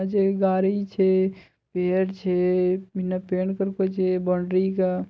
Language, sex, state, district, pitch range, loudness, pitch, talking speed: Maithili, male, Bihar, Bhagalpur, 185-195 Hz, -24 LUFS, 190 Hz, 120 wpm